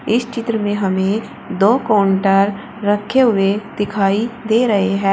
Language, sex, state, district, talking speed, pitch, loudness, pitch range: Hindi, female, Uttar Pradesh, Shamli, 140 wpm, 205 Hz, -16 LUFS, 195-225 Hz